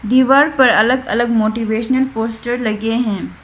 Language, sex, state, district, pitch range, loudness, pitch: Hindi, female, Arunachal Pradesh, Lower Dibang Valley, 220-255 Hz, -15 LUFS, 230 Hz